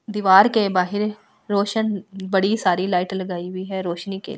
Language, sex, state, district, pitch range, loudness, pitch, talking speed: Hindi, female, Delhi, New Delhi, 185-210 Hz, -21 LUFS, 195 Hz, 165 wpm